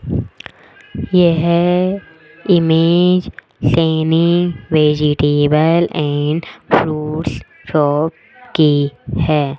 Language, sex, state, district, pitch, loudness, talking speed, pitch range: Hindi, female, Rajasthan, Jaipur, 160 Hz, -15 LUFS, 55 wpm, 150-170 Hz